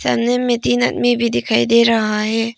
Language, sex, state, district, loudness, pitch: Hindi, female, Arunachal Pradesh, Papum Pare, -16 LUFS, 210 Hz